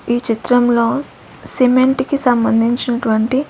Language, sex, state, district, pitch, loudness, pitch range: Telugu, female, Andhra Pradesh, Sri Satya Sai, 245 Hz, -15 LUFS, 230-260 Hz